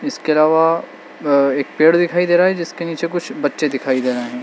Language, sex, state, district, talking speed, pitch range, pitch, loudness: Hindi, male, Uttar Pradesh, Lalitpur, 215 wpm, 140-170 Hz, 160 Hz, -17 LUFS